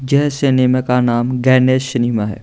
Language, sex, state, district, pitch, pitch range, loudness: Hindi, male, Bihar, Vaishali, 130 Hz, 120-130 Hz, -15 LUFS